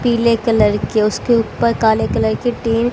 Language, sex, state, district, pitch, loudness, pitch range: Hindi, female, Haryana, Jhajjar, 230 Hz, -16 LUFS, 215-235 Hz